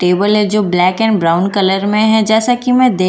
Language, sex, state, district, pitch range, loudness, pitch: Hindi, female, Bihar, Katihar, 185-220 Hz, -12 LUFS, 205 Hz